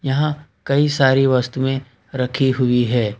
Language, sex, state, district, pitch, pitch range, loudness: Hindi, male, Jharkhand, Ranchi, 130 Hz, 125-140 Hz, -18 LUFS